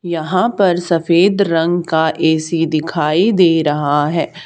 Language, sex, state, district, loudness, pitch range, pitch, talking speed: Hindi, male, Haryana, Charkhi Dadri, -15 LUFS, 160-180 Hz, 165 Hz, 135 wpm